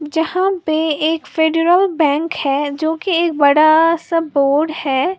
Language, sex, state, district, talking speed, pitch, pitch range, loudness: Hindi, female, Uttar Pradesh, Lalitpur, 150 wpm, 320 Hz, 300-335 Hz, -15 LUFS